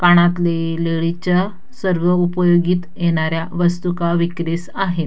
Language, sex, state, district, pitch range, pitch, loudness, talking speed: Marathi, female, Maharashtra, Dhule, 170-180 Hz, 175 Hz, -18 LUFS, 120 wpm